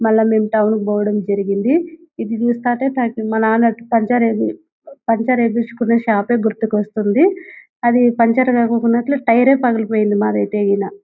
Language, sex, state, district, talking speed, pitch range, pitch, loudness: Telugu, female, Andhra Pradesh, Anantapur, 120 wpm, 215-245 Hz, 230 Hz, -16 LUFS